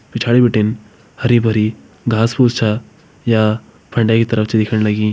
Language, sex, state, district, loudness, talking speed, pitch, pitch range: Hindi, male, Uttarakhand, Uttarkashi, -16 LUFS, 165 wpm, 110 Hz, 110-120 Hz